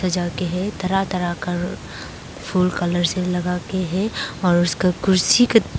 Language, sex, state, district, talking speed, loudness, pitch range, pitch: Hindi, female, Arunachal Pradesh, Papum Pare, 115 wpm, -20 LUFS, 175-190 Hz, 180 Hz